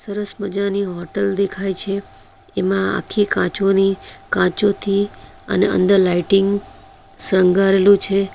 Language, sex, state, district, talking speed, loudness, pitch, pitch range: Gujarati, female, Gujarat, Valsad, 100 wpm, -17 LUFS, 195 Hz, 195-200 Hz